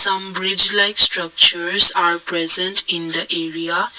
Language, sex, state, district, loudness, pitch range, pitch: English, male, Assam, Kamrup Metropolitan, -14 LUFS, 170-195 Hz, 175 Hz